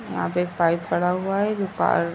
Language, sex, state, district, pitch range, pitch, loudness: Hindi, female, Uttar Pradesh, Ghazipur, 170-195 Hz, 180 Hz, -23 LUFS